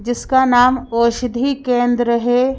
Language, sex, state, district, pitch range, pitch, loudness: Hindi, female, Madhya Pradesh, Bhopal, 240-255 Hz, 245 Hz, -16 LUFS